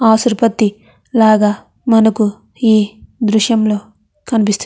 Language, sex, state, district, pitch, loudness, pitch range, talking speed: Telugu, female, Andhra Pradesh, Chittoor, 220 Hz, -14 LUFS, 210-225 Hz, 90 wpm